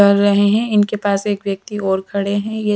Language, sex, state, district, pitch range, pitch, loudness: Hindi, female, Punjab, Pathankot, 200-210 Hz, 205 Hz, -17 LUFS